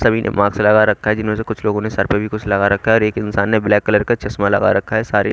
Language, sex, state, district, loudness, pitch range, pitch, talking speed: Hindi, male, Haryana, Rohtak, -16 LUFS, 105-110 Hz, 105 Hz, 340 wpm